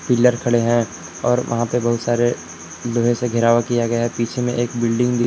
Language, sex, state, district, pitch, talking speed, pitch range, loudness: Hindi, male, Jharkhand, Palamu, 120 Hz, 215 wpm, 115-120 Hz, -19 LUFS